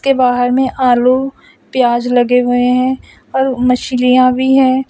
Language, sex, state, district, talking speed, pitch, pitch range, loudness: Hindi, male, Assam, Sonitpur, 135 wpm, 255 Hz, 250-265 Hz, -12 LUFS